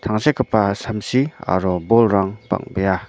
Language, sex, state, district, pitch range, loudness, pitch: Garo, male, Meghalaya, North Garo Hills, 95-120 Hz, -19 LUFS, 110 Hz